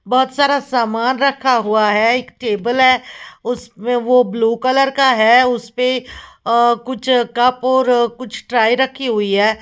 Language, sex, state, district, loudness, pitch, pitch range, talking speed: Hindi, female, Uttar Pradesh, Lalitpur, -15 LUFS, 245 Hz, 230-255 Hz, 145 wpm